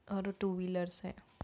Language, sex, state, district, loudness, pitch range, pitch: Hindi, female, Bihar, Jahanabad, -38 LUFS, 180-195 Hz, 185 Hz